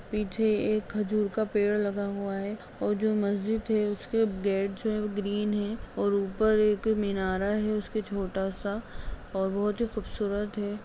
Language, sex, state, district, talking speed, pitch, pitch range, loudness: Hindi, female, Bihar, Begusarai, 175 wpm, 210 Hz, 200-215 Hz, -29 LUFS